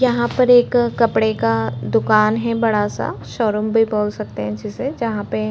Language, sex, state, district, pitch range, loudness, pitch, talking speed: Hindi, female, Chhattisgarh, Korba, 205-235 Hz, -18 LUFS, 215 Hz, 195 wpm